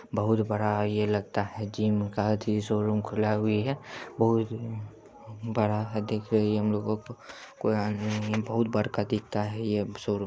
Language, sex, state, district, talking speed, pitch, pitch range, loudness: Hindi, male, Bihar, Supaul, 145 wpm, 105 Hz, 105-110 Hz, -29 LUFS